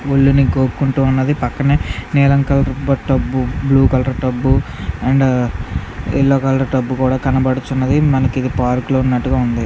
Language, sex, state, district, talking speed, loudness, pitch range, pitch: Telugu, male, Andhra Pradesh, Visakhapatnam, 120 wpm, -16 LUFS, 130-135 Hz, 130 Hz